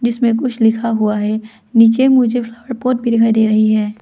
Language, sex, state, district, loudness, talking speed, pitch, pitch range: Hindi, female, Arunachal Pradesh, Lower Dibang Valley, -14 LUFS, 210 wpm, 230 Hz, 220-240 Hz